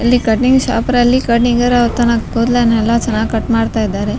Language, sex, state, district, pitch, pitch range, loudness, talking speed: Kannada, female, Karnataka, Raichur, 235 Hz, 225-245 Hz, -13 LUFS, 185 wpm